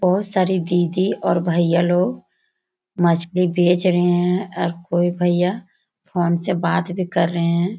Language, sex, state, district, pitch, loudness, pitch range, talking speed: Hindi, female, Jharkhand, Sahebganj, 175 Hz, -19 LUFS, 175-185 Hz, 155 wpm